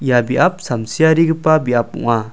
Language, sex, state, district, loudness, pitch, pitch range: Garo, male, Meghalaya, South Garo Hills, -15 LUFS, 130 Hz, 120-160 Hz